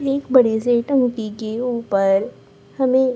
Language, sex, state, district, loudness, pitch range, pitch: Hindi, female, Chhattisgarh, Raipur, -19 LUFS, 220-260 Hz, 245 Hz